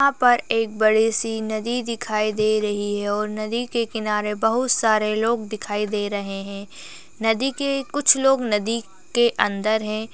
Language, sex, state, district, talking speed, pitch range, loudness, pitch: Hindi, female, Bihar, Purnia, 170 wpm, 210-235 Hz, -21 LUFS, 220 Hz